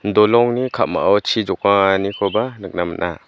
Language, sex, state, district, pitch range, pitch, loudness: Garo, male, Meghalaya, West Garo Hills, 95-110 Hz, 100 Hz, -17 LUFS